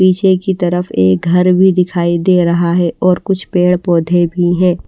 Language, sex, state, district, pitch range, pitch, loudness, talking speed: Hindi, female, Odisha, Malkangiri, 175-185 Hz, 180 Hz, -12 LUFS, 195 wpm